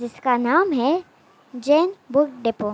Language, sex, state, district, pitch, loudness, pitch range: Hindi, female, Uttar Pradesh, Gorakhpur, 270 Hz, -21 LUFS, 240-315 Hz